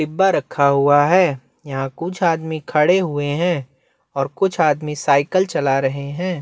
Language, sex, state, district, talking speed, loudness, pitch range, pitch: Hindi, male, Chhattisgarh, Bastar, 160 wpm, -18 LUFS, 140-180 Hz, 150 Hz